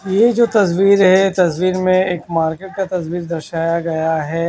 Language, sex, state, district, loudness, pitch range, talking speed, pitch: Hindi, male, Haryana, Charkhi Dadri, -16 LUFS, 165-190 Hz, 175 wpm, 180 Hz